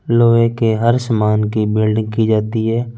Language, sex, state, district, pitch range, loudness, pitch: Hindi, male, Punjab, Fazilka, 110-115 Hz, -15 LUFS, 110 Hz